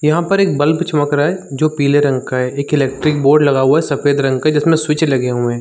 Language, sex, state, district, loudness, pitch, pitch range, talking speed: Hindi, male, Chhattisgarh, Sarguja, -14 LUFS, 145 Hz, 135-155 Hz, 280 wpm